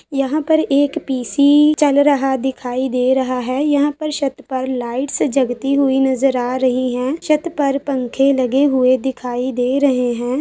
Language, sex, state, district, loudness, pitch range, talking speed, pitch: Hindi, female, Uttar Pradesh, Muzaffarnagar, -17 LUFS, 255-285 Hz, 180 wpm, 265 Hz